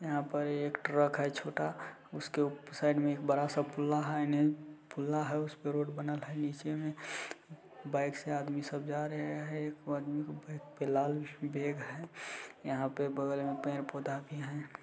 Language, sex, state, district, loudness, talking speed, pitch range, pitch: Hindi, male, Bihar, Madhepura, -36 LUFS, 175 wpm, 145-150 Hz, 145 Hz